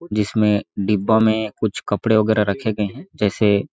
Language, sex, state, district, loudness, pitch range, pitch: Hindi, male, Chhattisgarh, Sarguja, -19 LUFS, 105-110 Hz, 105 Hz